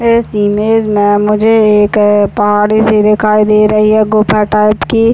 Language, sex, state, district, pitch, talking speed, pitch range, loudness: Hindi, male, Chhattisgarh, Raigarh, 210 Hz, 175 wpm, 210-215 Hz, -9 LUFS